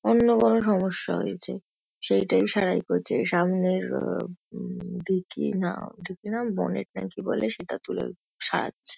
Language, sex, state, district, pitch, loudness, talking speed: Bengali, female, West Bengal, Kolkata, 185 Hz, -27 LUFS, 140 wpm